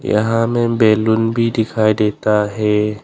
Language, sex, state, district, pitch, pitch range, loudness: Hindi, male, Arunachal Pradesh, Longding, 110 Hz, 105-115 Hz, -16 LUFS